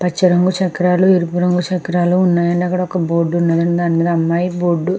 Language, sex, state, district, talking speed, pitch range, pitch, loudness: Telugu, female, Andhra Pradesh, Krishna, 170 wpm, 170-180 Hz, 175 Hz, -15 LUFS